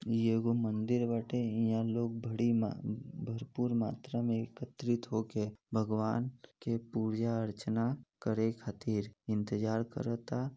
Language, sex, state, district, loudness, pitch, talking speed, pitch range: Bhojpuri, male, Uttar Pradesh, Deoria, -35 LUFS, 115 Hz, 120 wpm, 110-120 Hz